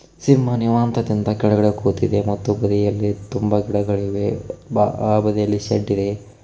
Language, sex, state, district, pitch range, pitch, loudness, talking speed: Kannada, male, Karnataka, Koppal, 100-115 Hz, 105 Hz, -19 LUFS, 110 wpm